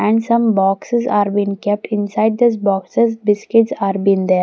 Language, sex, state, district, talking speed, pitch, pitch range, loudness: English, female, Maharashtra, Gondia, 175 wpm, 210 Hz, 195-230 Hz, -16 LUFS